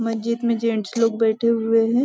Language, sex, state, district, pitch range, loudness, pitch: Hindi, female, Maharashtra, Nagpur, 225-230 Hz, -21 LUFS, 230 Hz